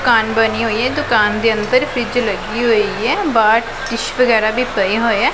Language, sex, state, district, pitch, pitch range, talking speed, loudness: Punjabi, female, Punjab, Pathankot, 225 Hz, 215-245 Hz, 190 wpm, -15 LUFS